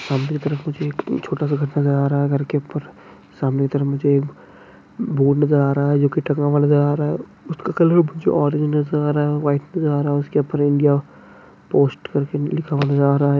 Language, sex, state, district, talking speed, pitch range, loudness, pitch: Hindi, male, Chhattisgarh, Bastar, 210 wpm, 140-150 Hz, -19 LUFS, 145 Hz